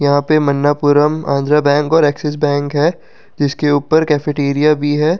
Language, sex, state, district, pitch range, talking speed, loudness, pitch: Hindi, male, Delhi, New Delhi, 145-150 Hz, 160 wpm, -14 LUFS, 145 Hz